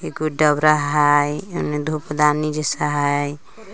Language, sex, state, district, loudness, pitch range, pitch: Magahi, female, Jharkhand, Palamu, -19 LUFS, 145-155 Hz, 150 Hz